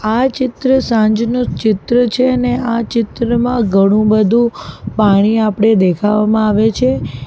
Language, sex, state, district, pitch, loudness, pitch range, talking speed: Gujarati, female, Gujarat, Valsad, 225 Hz, -13 LUFS, 210-245 Hz, 125 wpm